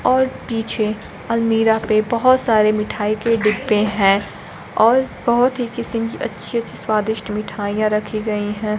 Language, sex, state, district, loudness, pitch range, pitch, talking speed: Hindi, female, Bihar, Kaimur, -18 LUFS, 210-235 Hz, 220 Hz, 145 wpm